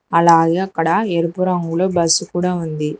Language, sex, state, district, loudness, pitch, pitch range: Telugu, female, Telangana, Hyderabad, -17 LUFS, 170 Hz, 165-180 Hz